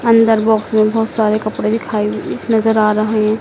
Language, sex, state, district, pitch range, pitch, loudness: Hindi, female, Madhya Pradesh, Dhar, 215-225 Hz, 215 Hz, -15 LUFS